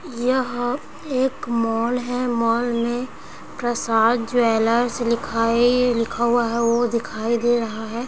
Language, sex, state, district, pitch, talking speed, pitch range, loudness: Hindi, female, Uttar Pradesh, Gorakhpur, 235 Hz, 140 wpm, 230-245 Hz, -21 LUFS